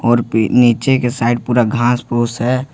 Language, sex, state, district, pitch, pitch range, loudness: Hindi, male, Jharkhand, Ranchi, 120 Hz, 120-125 Hz, -15 LUFS